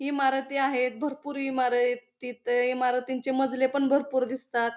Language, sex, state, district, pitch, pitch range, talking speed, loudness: Marathi, female, Maharashtra, Pune, 260 Hz, 250-270 Hz, 140 wpm, -27 LUFS